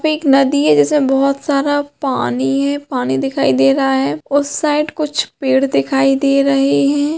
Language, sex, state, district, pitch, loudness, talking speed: Hindi, female, Jharkhand, Sahebganj, 275 Hz, -15 LUFS, 185 wpm